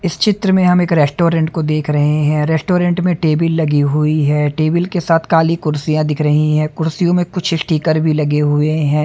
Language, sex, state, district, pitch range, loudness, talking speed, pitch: Hindi, male, Haryana, Charkhi Dadri, 150-170 Hz, -15 LUFS, 210 wpm, 155 Hz